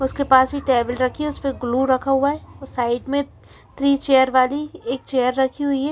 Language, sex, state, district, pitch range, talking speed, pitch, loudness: Hindi, female, Chandigarh, Chandigarh, 255-280 Hz, 235 wpm, 265 Hz, -20 LUFS